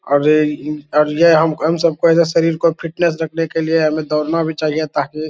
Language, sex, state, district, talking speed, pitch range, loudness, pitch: Hindi, male, Bihar, Lakhisarai, 215 wpm, 150-165 Hz, -16 LUFS, 160 Hz